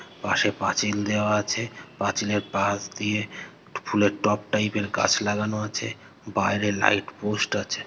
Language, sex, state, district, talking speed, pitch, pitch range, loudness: Bengali, male, West Bengal, North 24 Parganas, 135 wpm, 105 Hz, 100-105 Hz, -25 LUFS